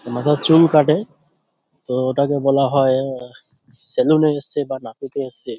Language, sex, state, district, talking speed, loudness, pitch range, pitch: Bengali, male, West Bengal, Dakshin Dinajpur, 140 wpm, -18 LUFS, 130-150 Hz, 140 Hz